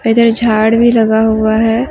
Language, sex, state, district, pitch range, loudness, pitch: Hindi, female, Jharkhand, Deoghar, 220-230 Hz, -11 LUFS, 225 Hz